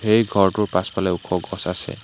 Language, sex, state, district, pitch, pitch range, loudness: Assamese, male, Assam, Hailakandi, 100 Hz, 95-105 Hz, -21 LUFS